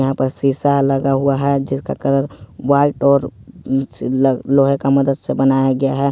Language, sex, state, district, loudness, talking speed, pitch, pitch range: Hindi, male, Jharkhand, Ranchi, -16 LUFS, 175 wpm, 135 Hz, 135-140 Hz